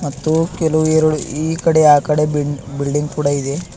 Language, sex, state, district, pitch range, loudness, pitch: Kannada, male, Karnataka, Bidar, 145-160 Hz, -16 LUFS, 150 Hz